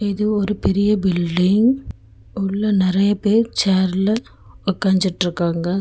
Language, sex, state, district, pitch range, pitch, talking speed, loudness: Tamil, female, Tamil Nadu, Chennai, 180-205 Hz, 195 Hz, 95 wpm, -18 LUFS